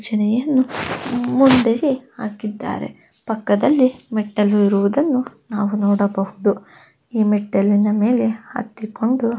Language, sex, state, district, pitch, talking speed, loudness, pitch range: Kannada, female, Karnataka, Gulbarga, 225 Hz, 75 wpm, -19 LUFS, 210-250 Hz